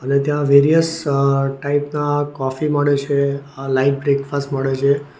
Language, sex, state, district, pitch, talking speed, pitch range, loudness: Gujarati, male, Gujarat, Valsad, 140 Hz, 150 wpm, 140-145 Hz, -18 LUFS